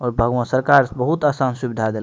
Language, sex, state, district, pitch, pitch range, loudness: Maithili, male, Bihar, Madhepura, 125 Hz, 120-135 Hz, -18 LUFS